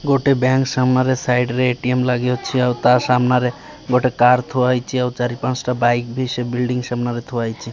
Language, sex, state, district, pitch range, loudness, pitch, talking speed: Odia, male, Odisha, Malkangiri, 125-130 Hz, -18 LUFS, 125 Hz, 170 wpm